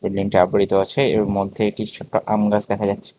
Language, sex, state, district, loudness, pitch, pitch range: Bengali, male, Tripura, West Tripura, -20 LUFS, 100 Hz, 100-105 Hz